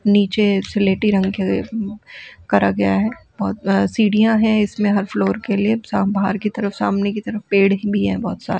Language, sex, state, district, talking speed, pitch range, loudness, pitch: Hindi, female, Uttar Pradesh, Jalaun, 195 wpm, 190-210 Hz, -18 LUFS, 205 Hz